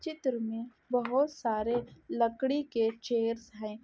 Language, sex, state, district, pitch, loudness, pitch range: Hindi, female, Jharkhand, Sahebganj, 235 Hz, -32 LUFS, 225-260 Hz